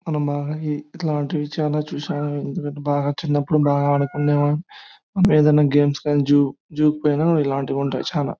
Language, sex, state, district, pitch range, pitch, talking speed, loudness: Telugu, male, Andhra Pradesh, Anantapur, 145-150 Hz, 145 Hz, 120 wpm, -20 LUFS